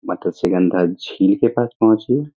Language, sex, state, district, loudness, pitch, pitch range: Hindi, male, Bihar, Saharsa, -17 LUFS, 110 Hz, 90-120 Hz